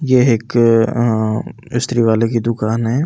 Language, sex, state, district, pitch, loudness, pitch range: Hindi, male, Delhi, New Delhi, 115 Hz, -16 LUFS, 115-120 Hz